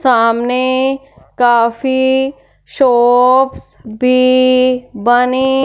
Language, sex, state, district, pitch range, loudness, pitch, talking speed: Hindi, female, Punjab, Fazilka, 245-260 Hz, -12 LUFS, 255 Hz, 55 wpm